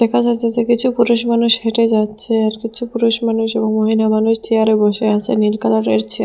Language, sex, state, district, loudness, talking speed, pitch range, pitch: Bengali, female, Assam, Hailakandi, -15 LUFS, 200 wpm, 215-235 Hz, 225 Hz